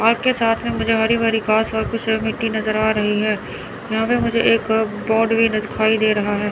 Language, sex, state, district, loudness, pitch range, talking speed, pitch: Hindi, male, Chandigarh, Chandigarh, -18 LUFS, 215-225 Hz, 230 wpm, 220 Hz